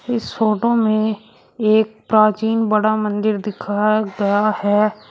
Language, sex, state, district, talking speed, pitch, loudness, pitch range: Hindi, female, Uttar Pradesh, Shamli, 115 wpm, 215 Hz, -18 LUFS, 210-220 Hz